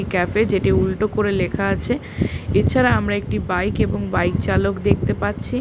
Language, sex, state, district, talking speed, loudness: Bengali, female, West Bengal, Paschim Medinipur, 170 wpm, -20 LUFS